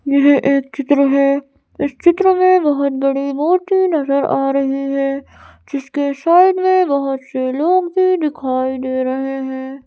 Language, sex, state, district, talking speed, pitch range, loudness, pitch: Hindi, female, Madhya Pradesh, Bhopal, 145 wpm, 275-335 Hz, -16 LUFS, 280 Hz